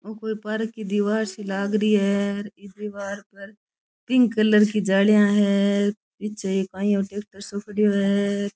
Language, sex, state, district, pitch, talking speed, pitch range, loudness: Rajasthani, female, Rajasthan, Churu, 205 Hz, 180 wpm, 200-210 Hz, -22 LUFS